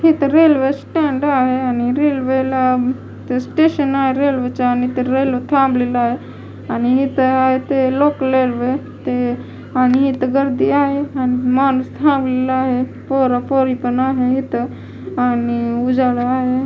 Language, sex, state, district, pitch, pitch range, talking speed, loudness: Marathi, female, Maharashtra, Mumbai Suburban, 260 Hz, 250-275 Hz, 130 wpm, -16 LUFS